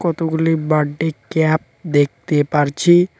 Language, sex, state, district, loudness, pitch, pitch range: Bengali, male, West Bengal, Cooch Behar, -17 LUFS, 160 Hz, 150-165 Hz